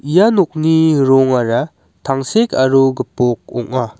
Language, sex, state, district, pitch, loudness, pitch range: Garo, male, Meghalaya, West Garo Hills, 135 Hz, -14 LUFS, 125-160 Hz